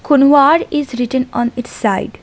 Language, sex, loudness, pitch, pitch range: English, female, -14 LUFS, 275 Hz, 245-290 Hz